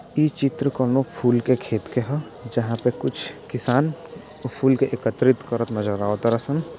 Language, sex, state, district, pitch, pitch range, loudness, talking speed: Bhojpuri, male, Bihar, Gopalganj, 130 Hz, 115-140 Hz, -23 LUFS, 175 wpm